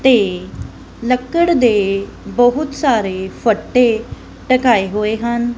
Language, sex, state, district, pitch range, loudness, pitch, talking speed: Punjabi, female, Punjab, Kapurthala, 210-255 Hz, -16 LUFS, 240 Hz, 95 wpm